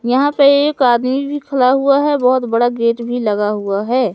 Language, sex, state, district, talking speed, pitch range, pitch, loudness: Hindi, male, Madhya Pradesh, Katni, 215 wpm, 235-280 Hz, 255 Hz, -14 LUFS